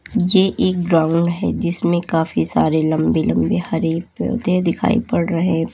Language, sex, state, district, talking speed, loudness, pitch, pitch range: Hindi, female, Uttar Pradesh, Lalitpur, 155 wpm, -18 LUFS, 170 Hz, 160-185 Hz